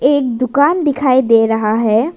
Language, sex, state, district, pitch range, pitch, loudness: Hindi, female, Arunachal Pradesh, Lower Dibang Valley, 225-285 Hz, 255 Hz, -13 LUFS